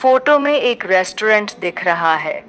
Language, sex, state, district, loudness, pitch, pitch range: Hindi, female, Uttar Pradesh, Shamli, -15 LUFS, 210 Hz, 175-260 Hz